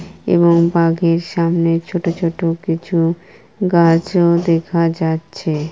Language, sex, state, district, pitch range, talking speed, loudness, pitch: Bengali, female, West Bengal, Kolkata, 165-175 Hz, 95 wpm, -16 LUFS, 170 Hz